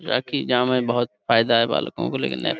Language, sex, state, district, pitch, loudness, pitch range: Urdu, male, Uttar Pradesh, Budaun, 120 Hz, -21 LUFS, 115-125 Hz